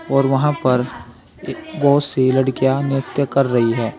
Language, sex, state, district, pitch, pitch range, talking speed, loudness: Hindi, male, Uttar Pradesh, Saharanpur, 135 Hz, 130-140 Hz, 150 wpm, -17 LUFS